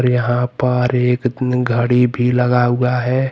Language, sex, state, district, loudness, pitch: Hindi, male, Jharkhand, Deoghar, -16 LUFS, 125 Hz